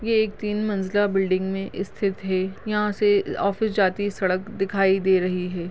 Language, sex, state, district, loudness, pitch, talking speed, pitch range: Hindi, female, Goa, North and South Goa, -23 LUFS, 195 Hz, 180 wpm, 190-210 Hz